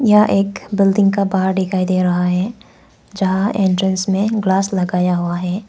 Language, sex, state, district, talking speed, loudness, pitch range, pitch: Hindi, female, Arunachal Pradesh, Lower Dibang Valley, 170 wpm, -16 LUFS, 185-200 Hz, 190 Hz